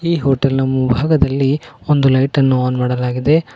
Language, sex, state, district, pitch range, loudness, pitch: Kannada, male, Karnataka, Koppal, 125-145 Hz, -15 LUFS, 135 Hz